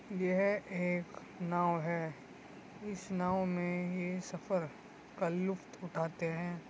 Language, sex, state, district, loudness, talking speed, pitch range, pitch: Hindi, male, Uttar Pradesh, Muzaffarnagar, -37 LUFS, 115 wpm, 175-190 Hz, 180 Hz